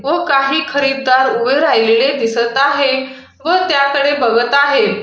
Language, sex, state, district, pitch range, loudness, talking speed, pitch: Marathi, female, Maharashtra, Aurangabad, 265-285 Hz, -13 LUFS, 145 wpm, 280 Hz